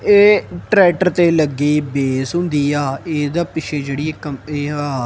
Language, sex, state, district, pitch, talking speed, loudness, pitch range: Punjabi, male, Punjab, Kapurthala, 150 Hz, 155 wpm, -17 LUFS, 145-170 Hz